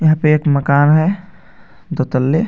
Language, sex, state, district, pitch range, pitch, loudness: Hindi, male, Jharkhand, Garhwa, 140-175 Hz, 155 Hz, -14 LUFS